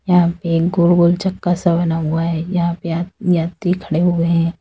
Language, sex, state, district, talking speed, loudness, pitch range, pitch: Hindi, female, Uttar Pradesh, Lalitpur, 210 wpm, -17 LUFS, 165-175 Hz, 170 Hz